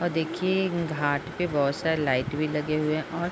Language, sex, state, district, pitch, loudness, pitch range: Hindi, female, Bihar, Madhepura, 155 Hz, -27 LUFS, 150-170 Hz